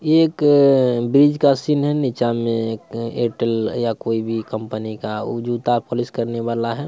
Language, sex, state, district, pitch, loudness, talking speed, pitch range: Hindi, male, Bihar, Saran, 120 Hz, -19 LUFS, 185 wpm, 115-140 Hz